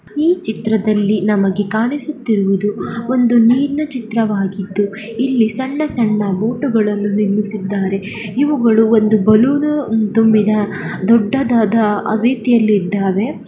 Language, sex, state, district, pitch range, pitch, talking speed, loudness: Kannada, female, Karnataka, Dakshina Kannada, 205-245 Hz, 220 Hz, 80 wpm, -15 LUFS